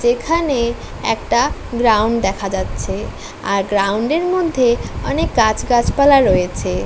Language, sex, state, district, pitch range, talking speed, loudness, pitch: Bengali, female, West Bengal, North 24 Parganas, 205-270 Hz, 115 wpm, -17 LUFS, 235 Hz